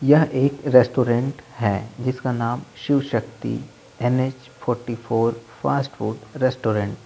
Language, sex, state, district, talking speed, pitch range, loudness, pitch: Hindi, male, Uttar Pradesh, Lalitpur, 125 wpm, 115-130 Hz, -22 LUFS, 125 Hz